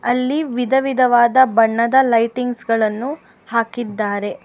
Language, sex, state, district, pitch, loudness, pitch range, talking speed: Kannada, female, Karnataka, Bangalore, 240 Hz, -17 LUFS, 230-260 Hz, 80 wpm